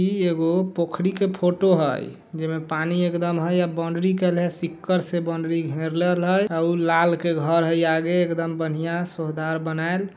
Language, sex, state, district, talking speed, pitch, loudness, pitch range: Hindi, male, Bihar, Darbhanga, 170 wpm, 170 Hz, -23 LUFS, 165-180 Hz